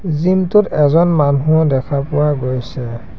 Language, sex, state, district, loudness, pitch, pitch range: Assamese, male, Assam, Sonitpur, -15 LUFS, 145 Hz, 130-160 Hz